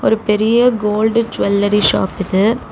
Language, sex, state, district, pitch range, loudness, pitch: Tamil, female, Tamil Nadu, Chennai, 200-225 Hz, -14 LUFS, 210 Hz